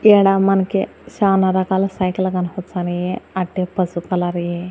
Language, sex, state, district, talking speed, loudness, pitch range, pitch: Telugu, female, Andhra Pradesh, Annamaya, 125 wpm, -19 LUFS, 180-195 Hz, 185 Hz